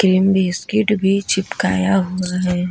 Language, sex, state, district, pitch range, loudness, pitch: Hindi, female, Bihar, Vaishali, 180-195 Hz, -18 LUFS, 190 Hz